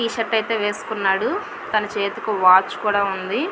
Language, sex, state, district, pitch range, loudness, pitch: Telugu, female, Andhra Pradesh, Visakhapatnam, 195-220 Hz, -20 LUFS, 205 Hz